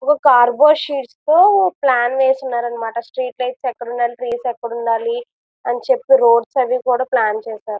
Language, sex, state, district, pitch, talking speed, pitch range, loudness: Telugu, female, Andhra Pradesh, Visakhapatnam, 250 Hz, 170 wpm, 235-270 Hz, -16 LUFS